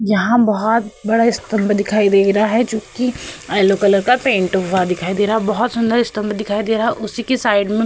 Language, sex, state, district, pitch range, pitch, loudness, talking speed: Hindi, female, Uttar Pradesh, Hamirpur, 205-230 Hz, 215 Hz, -16 LUFS, 235 wpm